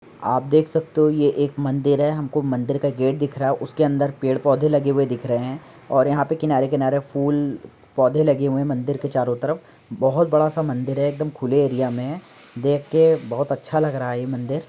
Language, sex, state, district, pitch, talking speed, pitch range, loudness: Hindi, male, Uttar Pradesh, Jyotiba Phule Nagar, 140 Hz, 235 wpm, 130-150 Hz, -21 LUFS